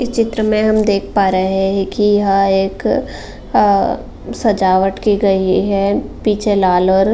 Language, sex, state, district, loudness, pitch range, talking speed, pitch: Hindi, female, Uttar Pradesh, Jalaun, -15 LUFS, 195-210 Hz, 170 wpm, 200 Hz